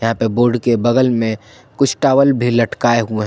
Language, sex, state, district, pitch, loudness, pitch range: Hindi, male, Jharkhand, Ranchi, 120 Hz, -15 LUFS, 115-125 Hz